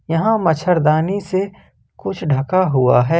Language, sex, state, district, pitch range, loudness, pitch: Hindi, male, Jharkhand, Ranchi, 155-190 Hz, -17 LUFS, 170 Hz